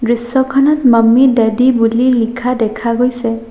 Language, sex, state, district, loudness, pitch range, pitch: Assamese, female, Assam, Sonitpur, -12 LUFS, 230-255 Hz, 240 Hz